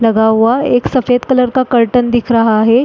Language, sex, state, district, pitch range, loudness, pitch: Hindi, female, Uttarakhand, Uttarkashi, 225-250 Hz, -12 LUFS, 240 Hz